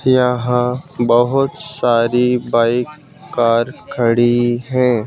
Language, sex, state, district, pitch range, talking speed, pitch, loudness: Hindi, male, Madhya Pradesh, Bhopal, 120-130 Hz, 85 wpm, 125 Hz, -16 LUFS